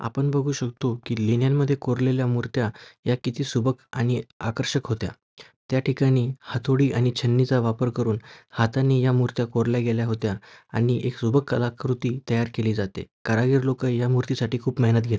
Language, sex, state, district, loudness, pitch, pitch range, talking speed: Marathi, male, Maharashtra, Aurangabad, -24 LUFS, 125 Hz, 115-130 Hz, 160 wpm